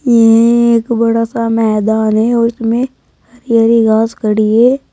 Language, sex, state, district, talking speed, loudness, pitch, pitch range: Hindi, female, Uttar Pradesh, Saharanpur, 145 wpm, -11 LUFS, 230 Hz, 225-235 Hz